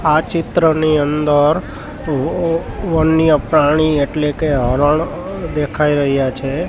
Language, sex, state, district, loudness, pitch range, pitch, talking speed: Gujarati, male, Gujarat, Gandhinagar, -15 LUFS, 145-160 Hz, 155 Hz, 100 wpm